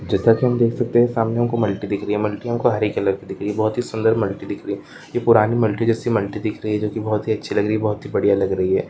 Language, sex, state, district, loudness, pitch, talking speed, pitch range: Hindi, male, Rajasthan, Churu, -20 LUFS, 110 Hz, 345 wpm, 105-115 Hz